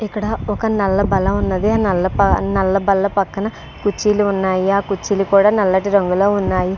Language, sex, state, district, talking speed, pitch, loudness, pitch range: Telugu, female, Andhra Pradesh, Srikakulam, 150 wpm, 200 Hz, -17 LUFS, 190-205 Hz